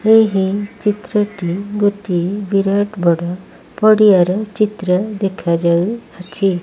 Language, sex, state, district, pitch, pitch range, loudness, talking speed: Odia, female, Odisha, Malkangiri, 200 Hz, 180-210 Hz, -16 LUFS, 90 wpm